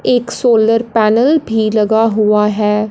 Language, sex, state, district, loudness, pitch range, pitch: Hindi, female, Punjab, Fazilka, -12 LUFS, 215-230 Hz, 220 Hz